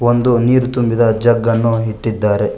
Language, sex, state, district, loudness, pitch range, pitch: Kannada, male, Karnataka, Koppal, -14 LUFS, 110-120 Hz, 115 Hz